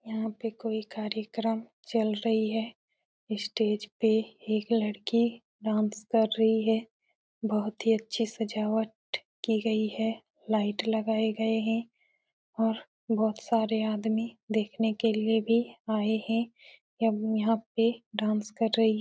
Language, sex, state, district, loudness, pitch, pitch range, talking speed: Hindi, female, Uttar Pradesh, Etah, -29 LUFS, 220 Hz, 215-225 Hz, 135 wpm